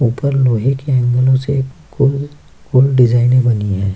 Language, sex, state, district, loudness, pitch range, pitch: Hindi, male, Bihar, Kishanganj, -14 LUFS, 120-135 Hz, 130 Hz